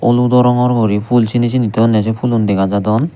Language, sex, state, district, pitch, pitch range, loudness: Chakma, male, Tripura, Unakoti, 115 Hz, 110-125 Hz, -13 LUFS